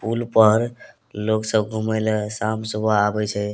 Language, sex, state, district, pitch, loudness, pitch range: Maithili, male, Bihar, Madhepura, 110 Hz, -21 LUFS, 105-110 Hz